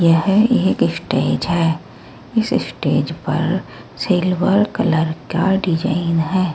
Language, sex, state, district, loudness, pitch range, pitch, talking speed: Hindi, female, Uttar Pradesh, Saharanpur, -18 LUFS, 165-195 Hz, 180 Hz, 110 wpm